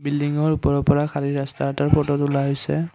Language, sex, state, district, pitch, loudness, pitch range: Assamese, male, Assam, Kamrup Metropolitan, 145 Hz, -21 LUFS, 140-150 Hz